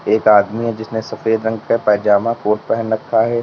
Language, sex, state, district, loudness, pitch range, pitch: Hindi, male, Uttar Pradesh, Lalitpur, -16 LUFS, 105-115 Hz, 110 Hz